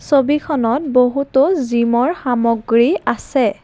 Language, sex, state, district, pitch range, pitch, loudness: Assamese, female, Assam, Kamrup Metropolitan, 235-285 Hz, 255 Hz, -16 LUFS